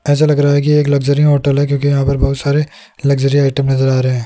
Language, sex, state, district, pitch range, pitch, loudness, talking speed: Hindi, male, Rajasthan, Jaipur, 135-145 Hz, 140 Hz, -13 LUFS, 270 wpm